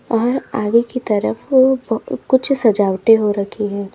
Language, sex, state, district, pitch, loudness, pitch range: Hindi, female, Uttar Pradesh, Lalitpur, 225 Hz, -16 LUFS, 210-260 Hz